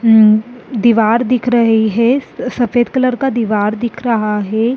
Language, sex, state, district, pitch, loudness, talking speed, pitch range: Hindi, female, Chhattisgarh, Rajnandgaon, 235 Hz, -14 LUFS, 140 wpm, 220-245 Hz